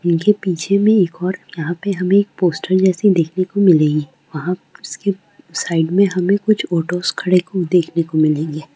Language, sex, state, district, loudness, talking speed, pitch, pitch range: Hindi, female, Bihar, Saran, -17 LUFS, 210 wpm, 180 Hz, 165-195 Hz